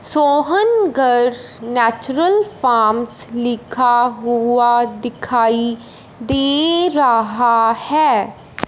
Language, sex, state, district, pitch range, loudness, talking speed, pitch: Hindi, male, Punjab, Fazilka, 235-290 Hz, -15 LUFS, 70 wpm, 245 Hz